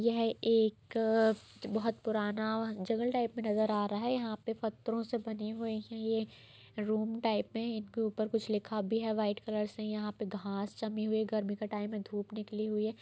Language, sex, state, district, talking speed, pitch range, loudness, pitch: Hindi, female, Bihar, East Champaran, 205 wpm, 210-225 Hz, -35 LUFS, 220 Hz